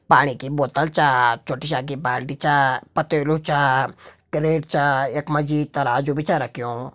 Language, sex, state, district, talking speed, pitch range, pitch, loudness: Garhwali, male, Uttarakhand, Tehri Garhwal, 165 wpm, 135-150 Hz, 145 Hz, -21 LUFS